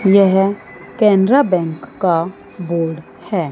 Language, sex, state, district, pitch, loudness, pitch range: Hindi, female, Chandigarh, Chandigarh, 185 Hz, -16 LUFS, 170-200 Hz